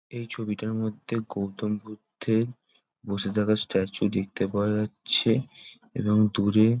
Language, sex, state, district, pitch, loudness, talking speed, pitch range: Bengali, male, West Bengal, Jalpaiguri, 110 Hz, -27 LUFS, 125 wpm, 105-115 Hz